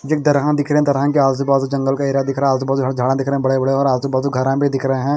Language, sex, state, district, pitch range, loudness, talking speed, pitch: Hindi, male, Bihar, Patna, 135-140 Hz, -17 LUFS, 325 wpm, 135 Hz